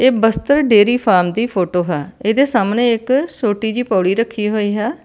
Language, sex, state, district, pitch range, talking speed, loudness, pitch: Punjabi, female, Karnataka, Bangalore, 205-245 Hz, 180 wpm, -15 LUFS, 220 Hz